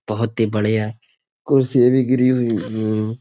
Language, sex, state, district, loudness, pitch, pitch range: Hindi, male, Uttar Pradesh, Budaun, -18 LUFS, 115 Hz, 110-125 Hz